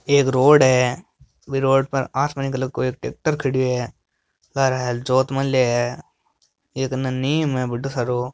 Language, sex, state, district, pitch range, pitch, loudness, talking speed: Marwari, male, Rajasthan, Nagaur, 125-135 Hz, 130 Hz, -20 LUFS, 175 wpm